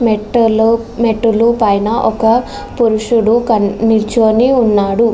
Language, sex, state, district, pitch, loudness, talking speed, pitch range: Telugu, female, Andhra Pradesh, Srikakulam, 225 Hz, -12 LUFS, 80 wpm, 220-235 Hz